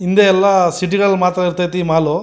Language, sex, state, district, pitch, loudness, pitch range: Kannada, male, Karnataka, Mysore, 180 Hz, -14 LUFS, 180-195 Hz